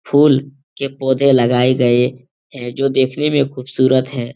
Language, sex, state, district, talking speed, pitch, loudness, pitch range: Hindi, male, Bihar, Supaul, 150 wpm, 130 Hz, -15 LUFS, 125-140 Hz